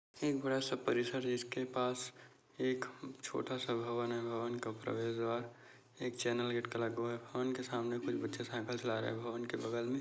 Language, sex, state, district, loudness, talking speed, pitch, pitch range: Hindi, male, Chhattisgarh, Bastar, -39 LUFS, 215 wpm, 120 Hz, 115-125 Hz